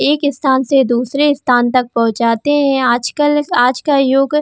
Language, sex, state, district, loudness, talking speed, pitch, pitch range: Hindi, female, Jharkhand, Jamtara, -14 LUFS, 175 wpm, 265 Hz, 245-285 Hz